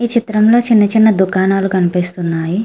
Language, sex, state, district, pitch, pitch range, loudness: Telugu, female, Andhra Pradesh, Srikakulam, 195 Hz, 180-220 Hz, -13 LUFS